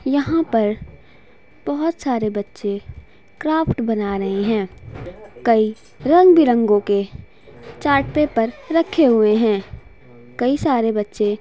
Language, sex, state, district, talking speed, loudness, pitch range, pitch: Hindi, female, Bihar, Jahanabad, 105 wpm, -18 LUFS, 210-290 Hz, 225 Hz